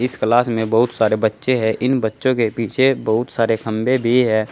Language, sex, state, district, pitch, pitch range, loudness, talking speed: Hindi, male, Uttar Pradesh, Saharanpur, 115 Hz, 110-125 Hz, -18 LUFS, 210 wpm